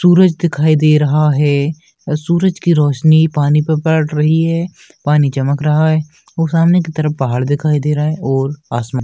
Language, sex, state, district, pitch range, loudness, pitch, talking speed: Hindi, male, Uttar Pradesh, Hamirpur, 145-160 Hz, -14 LUFS, 155 Hz, 190 wpm